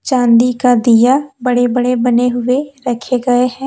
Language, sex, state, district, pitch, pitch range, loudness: Hindi, female, Jharkhand, Deoghar, 245 Hz, 245-255 Hz, -13 LUFS